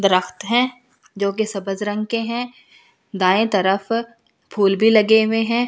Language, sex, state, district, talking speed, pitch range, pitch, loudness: Hindi, female, Delhi, New Delhi, 125 wpm, 195-230 Hz, 215 Hz, -19 LUFS